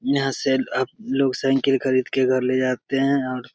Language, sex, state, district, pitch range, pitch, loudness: Maithili, male, Bihar, Begusarai, 130-135 Hz, 130 Hz, -21 LUFS